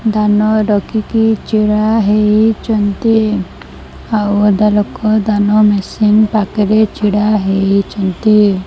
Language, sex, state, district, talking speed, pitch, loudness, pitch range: Odia, female, Odisha, Malkangiri, 90 wpm, 210 Hz, -12 LUFS, 205-215 Hz